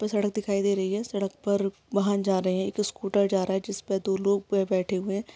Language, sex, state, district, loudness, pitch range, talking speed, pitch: Hindi, female, Bihar, Kishanganj, -27 LUFS, 195-205 Hz, 255 wpm, 200 Hz